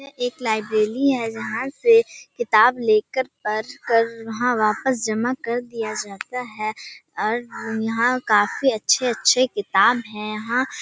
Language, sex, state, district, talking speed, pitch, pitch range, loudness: Hindi, male, Bihar, Kishanganj, 120 wpm, 235 Hz, 215-255 Hz, -21 LUFS